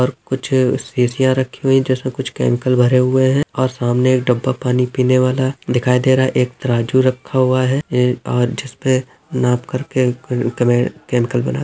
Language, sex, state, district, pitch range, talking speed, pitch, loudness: Hindi, male, Chhattisgarh, Bilaspur, 125-130 Hz, 185 wpm, 130 Hz, -17 LUFS